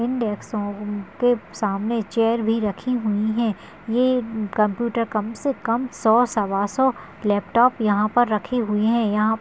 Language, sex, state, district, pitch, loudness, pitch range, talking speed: Hindi, female, Maharashtra, Dhule, 225 Hz, -22 LUFS, 210-235 Hz, 145 wpm